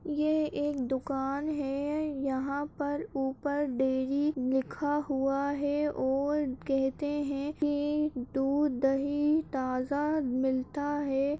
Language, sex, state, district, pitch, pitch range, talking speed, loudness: Kumaoni, female, Uttarakhand, Uttarkashi, 285 Hz, 270-295 Hz, 100 wpm, -31 LUFS